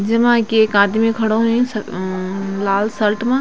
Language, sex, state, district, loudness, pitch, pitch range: Garhwali, female, Uttarakhand, Tehri Garhwal, -17 LUFS, 215 Hz, 200-230 Hz